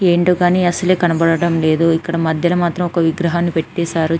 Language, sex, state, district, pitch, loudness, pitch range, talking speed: Telugu, female, Andhra Pradesh, Anantapur, 170 Hz, -16 LUFS, 165-175 Hz, 145 wpm